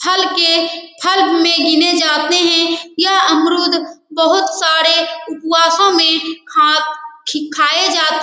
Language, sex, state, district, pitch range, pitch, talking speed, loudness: Hindi, female, Bihar, Saran, 320-345 Hz, 335 Hz, 110 wpm, -12 LUFS